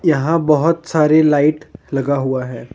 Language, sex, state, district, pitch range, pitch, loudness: Hindi, male, Jharkhand, Ranchi, 140-160 Hz, 150 Hz, -16 LUFS